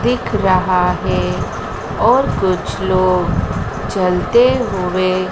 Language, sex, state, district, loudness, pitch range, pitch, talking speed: Hindi, female, Madhya Pradesh, Dhar, -16 LUFS, 180-190 Hz, 185 Hz, 90 wpm